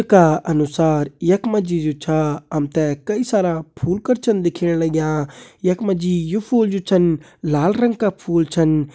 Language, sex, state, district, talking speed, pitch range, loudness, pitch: Kumaoni, male, Uttarakhand, Uttarkashi, 165 wpm, 155-195 Hz, -19 LUFS, 170 Hz